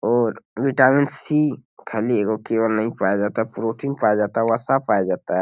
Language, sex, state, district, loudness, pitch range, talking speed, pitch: Hindi, male, Uttar Pradesh, Muzaffarnagar, -21 LUFS, 105-135 Hz, 200 wpm, 115 Hz